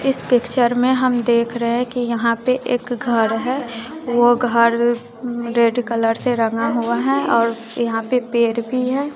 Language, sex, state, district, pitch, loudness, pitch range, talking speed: Hindi, female, Bihar, West Champaran, 240 Hz, -18 LUFS, 235-250 Hz, 175 wpm